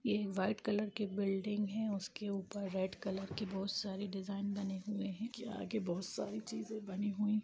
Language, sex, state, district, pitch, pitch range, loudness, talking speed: Hindi, female, Bihar, Gaya, 205 Hz, 195-210 Hz, -40 LUFS, 200 wpm